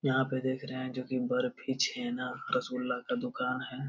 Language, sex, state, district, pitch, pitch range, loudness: Hindi, male, Bihar, Jamui, 130 Hz, 125-135 Hz, -33 LUFS